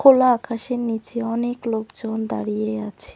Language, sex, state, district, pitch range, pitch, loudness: Bengali, female, West Bengal, Cooch Behar, 220-240 Hz, 230 Hz, -23 LUFS